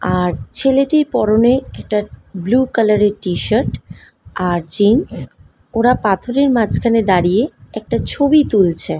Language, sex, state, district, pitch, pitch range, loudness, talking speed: Bengali, female, West Bengal, Malda, 215 Hz, 185-255 Hz, -15 LUFS, 125 wpm